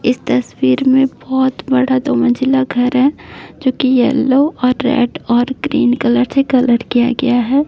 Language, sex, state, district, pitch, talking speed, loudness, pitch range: Hindi, female, Uttar Pradesh, Etah, 260 Hz, 150 wpm, -14 LUFS, 245-265 Hz